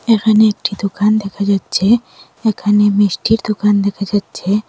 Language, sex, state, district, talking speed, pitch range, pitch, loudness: Bengali, female, Assam, Hailakandi, 130 wpm, 200-215 Hz, 205 Hz, -15 LUFS